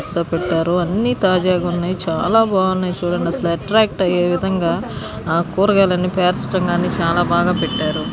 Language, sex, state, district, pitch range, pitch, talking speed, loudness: Telugu, male, Andhra Pradesh, Guntur, 170-185 Hz, 180 Hz, 145 wpm, -17 LUFS